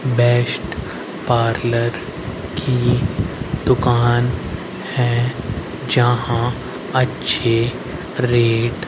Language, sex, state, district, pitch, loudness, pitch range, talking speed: Hindi, male, Haryana, Rohtak, 120 Hz, -19 LUFS, 120-125 Hz, 60 wpm